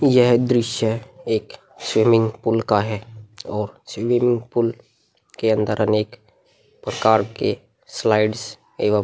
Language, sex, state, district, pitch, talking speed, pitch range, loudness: Hindi, male, Uttar Pradesh, Muzaffarnagar, 110 Hz, 120 wpm, 105-115 Hz, -20 LUFS